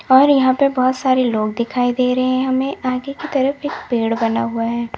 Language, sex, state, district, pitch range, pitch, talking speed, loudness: Hindi, female, Uttar Pradesh, Lalitpur, 235-265 Hz, 255 Hz, 230 wpm, -17 LUFS